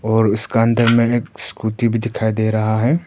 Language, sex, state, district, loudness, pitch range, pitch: Hindi, male, Arunachal Pradesh, Papum Pare, -17 LUFS, 110-115 Hz, 110 Hz